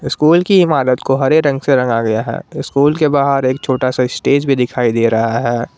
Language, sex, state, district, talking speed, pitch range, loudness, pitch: Hindi, male, Jharkhand, Garhwa, 240 wpm, 120-140 Hz, -14 LUFS, 135 Hz